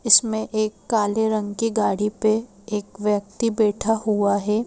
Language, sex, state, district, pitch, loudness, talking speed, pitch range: Hindi, female, Madhya Pradesh, Bhopal, 215 Hz, -22 LUFS, 155 wpm, 210-225 Hz